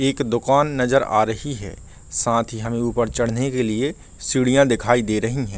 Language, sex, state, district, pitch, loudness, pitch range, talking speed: Hindi, male, Jharkhand, Sahebganj, 120 Hz, -20 LUFS, 115-135 Hz, 195 wpm